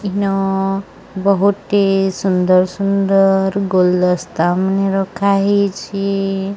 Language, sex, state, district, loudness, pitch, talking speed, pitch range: Odia, female, Odisha, Sambalpur, -16 LUFS, 195 Hz, 65 wpm, 190-200 Hz